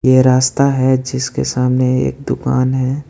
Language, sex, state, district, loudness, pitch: Hindi, male, West Bengal, Alipurduar, -15 LUFS, 130 Hz